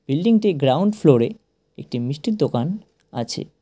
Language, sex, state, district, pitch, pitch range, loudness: Bengali, male, West Bengal, Cooch Behar, 155 Hz, 135-210 Hz, -20 LUFS